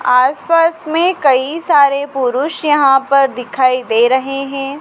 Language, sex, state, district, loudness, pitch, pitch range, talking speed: Hindi, female, Madhya Pradesh, Dhar, -13 LUFS, 275 Hz, 260-295 Hz, 150 wpm